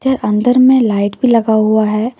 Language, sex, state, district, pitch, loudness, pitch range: Hindi, female, Jharkhand, Deoghar, 225 Hz, -12 LUFS, 215-250 Hz